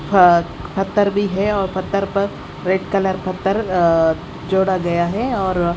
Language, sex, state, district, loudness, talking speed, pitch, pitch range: Hindi, female, Odisha, Khordha, -18 LUFS, 155 wpm, 190 Hz, 180-200 Hz